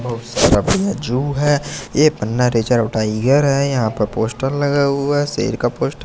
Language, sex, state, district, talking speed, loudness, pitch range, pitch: Hindi, male, Madhya Pradesh, Katni, 190 wpm, -17 LUFS, 115-145 Hz, 130 Hz